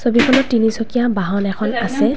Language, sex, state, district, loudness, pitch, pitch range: Assamese, female, Assam, Kamrup Metropolitan, -17 LUFS, 235 Hz, 220-255 Hz